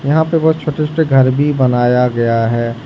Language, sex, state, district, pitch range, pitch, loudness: Hindi, male, Jharkhand, Ranchi, 120-155 Hz, 135 Hz, -13 LUFS